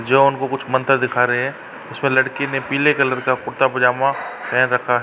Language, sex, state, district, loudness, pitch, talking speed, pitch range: Hindi, male, Uttar Pradesh, Varanasi, -18 LUFS, 135 Hz, 205 wpm, 125-140 Hz